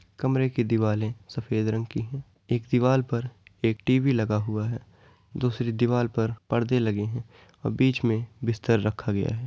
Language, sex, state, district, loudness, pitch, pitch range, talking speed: Hindi, male, Uttar Pradesh, Varanasi, -26 LUFS, 115 Hz, 110-125 Hz, 175 wpm